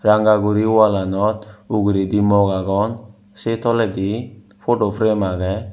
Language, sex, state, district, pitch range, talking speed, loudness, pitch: Chakma, male, Tripura, Unakoti, 100-110 Hz, 115 wpm, -18 LUFS, 105 Hz